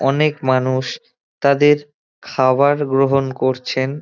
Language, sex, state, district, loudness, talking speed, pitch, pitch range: Bengali, male, West Bengal, Dakshin Dinajpur, -17 LUFS, 90 wpm, 135 Hz, 130-145 Hz